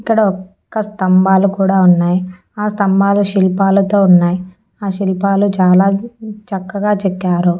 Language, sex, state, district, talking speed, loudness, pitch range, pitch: Telugu, female, Andhra Pradesh, Annamaya, 110 wpm, -14 LUFS, 185-205 Hz, 195 Hz